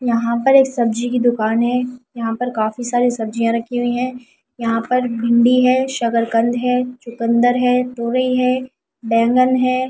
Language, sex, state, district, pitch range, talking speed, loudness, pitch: Hindi, female, Delhi, New Delhi, 235-250 Hz, 165 wpm, -17 LUFS, 245 Hz